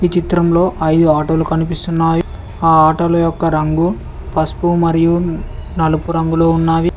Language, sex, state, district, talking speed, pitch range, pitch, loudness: Telugu, male, Telangana, Mahabubabad, 120 wpm, 160-170 Hz, 165 Hz, -14 LUFS